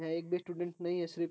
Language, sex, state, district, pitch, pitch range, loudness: Hindi, male, Bihar, Gopalganj, 175 Hz, 170-175 Hz, -37 LUFS